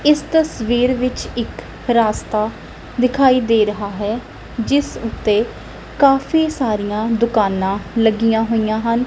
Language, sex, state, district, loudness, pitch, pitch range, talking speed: Punjabi, female, Punjab, Kapurthala, -17 LUFS, 230 Hz, 215-255 Hz, 110 wpm